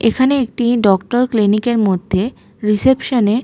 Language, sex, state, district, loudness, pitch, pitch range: Bengali, female, West Bengal, Malda, -15 LUFS, 225 Hz, 205-245 Hz